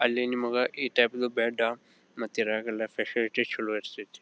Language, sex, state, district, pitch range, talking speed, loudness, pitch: Kannada, male, Karnataka, Belgaum, 110-120 Hz, 140 wpm, -29 LUFS, 115 Hz